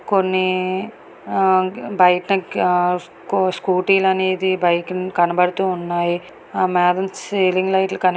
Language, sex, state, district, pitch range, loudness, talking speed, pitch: Telugu, female, Andhra Pradesh, Srikakulam, 180-190 Hz, -18 LUFS, 105 wpm, 185 Hz